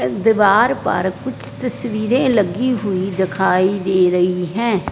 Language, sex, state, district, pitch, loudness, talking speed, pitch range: Hindi, female, Punjab, Fazilka, 195 Hz, -17 LUFS, 135 wpm, 185-225 Hz